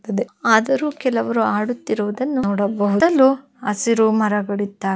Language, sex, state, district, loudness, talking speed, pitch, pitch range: Kannada, female, Karnataka, Bellary, -19 LUFS, 95 wpm, 220 Hz, 205-260 Hz